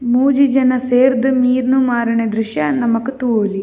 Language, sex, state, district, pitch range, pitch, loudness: Tulu, female, Karnataka, Dakshina Kannada, 230-260 Hz, 250 Hz, -15 LUFS